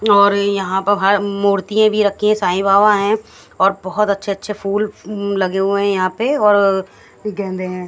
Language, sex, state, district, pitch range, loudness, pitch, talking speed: Hindi, female, Haryana, Jhajjar, 195-210 Hz, -16 LUFS, 200 Hz, 185 wpm